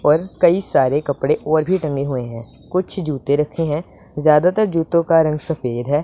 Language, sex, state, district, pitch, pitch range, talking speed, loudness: Hindi, female, Punjab, Pathankot, 155 Hz, 145-170 Hz, 190 wpm, -18 LUFS